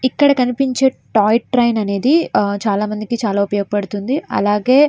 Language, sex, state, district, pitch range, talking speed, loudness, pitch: Telugu, female, Andhra Pradesh, Srikakulam, 205-260 Hz, 135 wpm, -16 LUFS, 225 Hz